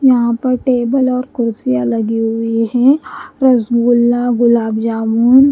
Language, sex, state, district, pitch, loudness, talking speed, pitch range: Hindi, female, Haryana, Rohtak, 235 Hz, -14 LUFS, 120 wpm, 225-255 Hz